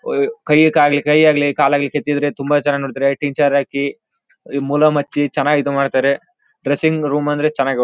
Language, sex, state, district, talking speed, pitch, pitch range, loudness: Kannada, male, Karnataka, Bellary, 145 wpm, 145 Hz, 140-150 Hz, -16 LUFS